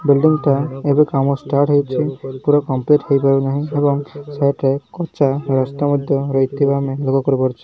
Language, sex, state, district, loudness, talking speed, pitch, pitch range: Odia, male, Odisha, Malkangiri, -17 LUFS, 155 wpm, 140 Hz, 135-145 Hz